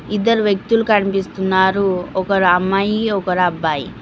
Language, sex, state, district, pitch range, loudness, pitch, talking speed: Telugu, female, Telangana, Mahabubabad, 185-205 Hz, -17 LUFS, 195 Hz, 105 wpm